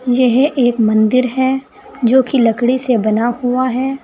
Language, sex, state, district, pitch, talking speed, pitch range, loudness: Hindi, female, Uttar Pradesh, Saharanpur, 250 Hz, 165 wpm, 240-260 Hz, -14 LUFS